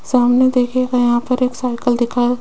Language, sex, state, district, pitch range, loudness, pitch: Hindi, female, Rajasthan, Jaipur, 245-255 Hz, -16 LUFS, 250 Hz